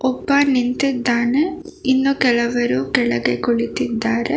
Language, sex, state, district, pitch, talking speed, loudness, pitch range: Kannada, female, Karnataka, Bangalore, 245 Hz, 80 wpm, -18 LUFS, 235-275 Hz